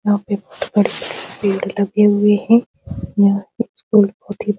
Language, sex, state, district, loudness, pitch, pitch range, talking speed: Hindi, female, Bihar, Supaul, -17 LUFS, 205 Hz, 200-215 Hz, 155 wpm